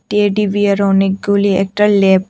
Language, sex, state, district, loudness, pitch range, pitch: Bengali, female, Tripura, West Tripura, -13 LUFS, 195-205 Hz, 200 Hz